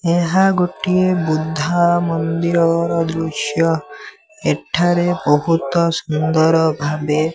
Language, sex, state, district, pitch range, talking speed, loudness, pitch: Odia, male, Odisha, Sambalpur, 155-175 Hz, 90 wpm, -17 LUFS, 165 Hz